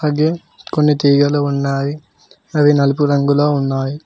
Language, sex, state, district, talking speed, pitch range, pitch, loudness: Telugu, male, Telangana, Mahabubabad, 120 wpm, 140-150 Hz, 145 Hz, -15 LUFS